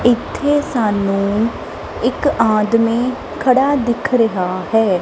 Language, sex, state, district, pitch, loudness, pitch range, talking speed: Punjabi, female, Punjab, Kapurthala, 230 Hz, -16 LUFS, 210-255 Hz, 95 wpm